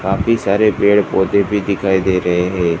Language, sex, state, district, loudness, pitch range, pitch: Hindi, male, Gujarat, Gandhinagar, -15 LUFS, 95-100 Hz, 95 Hz